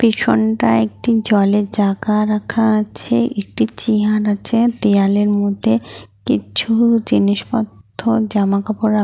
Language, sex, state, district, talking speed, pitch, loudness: Bengali, female, West Bengal, Paschim Medinipur, 105 wpm, 205 Hz, -16 LUFS